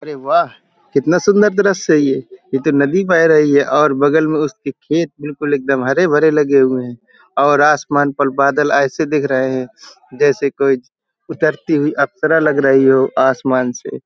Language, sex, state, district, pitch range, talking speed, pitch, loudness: Hindi, male, Uttar Pradesh, Hamirpur, 135-155 Hz, 185 wpm, 145 Hz, -14 LUFS